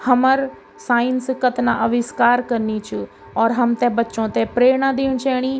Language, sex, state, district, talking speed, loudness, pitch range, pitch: Garhwali, female, Uttarakhand, Tehri Garhwal, 140 wpm, -19 LUFS, 235-260 Hz, 245 Hz